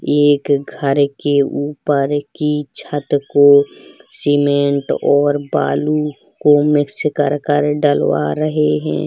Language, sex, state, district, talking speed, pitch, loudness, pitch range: Hindi, male, Uttar Pradesh, Jalaun, 110 wpm, 145 Hz, -16 LUFS, 140-145 Hz